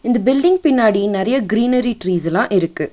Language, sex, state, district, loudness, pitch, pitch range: Tamil, female, Tamil Nadu, Nilgiris, -16 LUFS, 235 Hz, 195-250 Hz